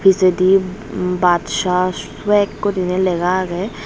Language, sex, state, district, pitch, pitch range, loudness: Chakma, female, Tripura, Unakoti, 185 Hz, 180-190 Hz, -17 LUFS